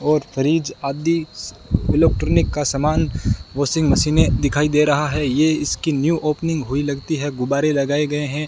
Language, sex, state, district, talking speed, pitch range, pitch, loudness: Hindi, male, Rajasthan, Bikaner, 165 wpm, 140-155 Hz, 150 Hz, -19 LUFS